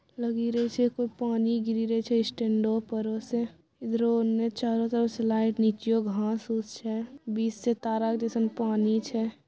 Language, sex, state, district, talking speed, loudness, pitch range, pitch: Maithili, female, Bihar, Bhagalpur, 175 wpm, -28 LUFS, 220-235 Hz, 225 Hz